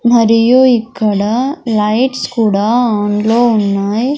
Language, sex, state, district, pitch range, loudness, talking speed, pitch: Telugu, male, Andhra Pradesh, Sri Satya Sai, 210-245 Hz, -12 LUFS, 100 wpm, 230 Hz